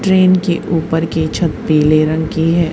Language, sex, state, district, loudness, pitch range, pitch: Hindi, female, Haryana, Charkhi Dadri, -14 LUFS, 160-175 Hz, 165 Hz